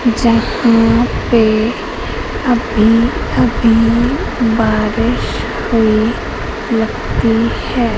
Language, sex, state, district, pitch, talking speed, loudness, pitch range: Hindi, male, Madhya Pradesh, Katni, 230 Hz, 60 wpm, -14 LUFS, 225-235 Hz